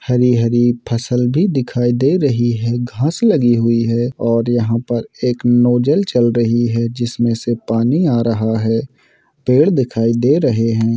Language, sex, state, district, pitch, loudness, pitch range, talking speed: Hindi, male, Bihar, Gopalganj, 120 Hz, -15 LUFS, 115-125 Hz, 160 wpm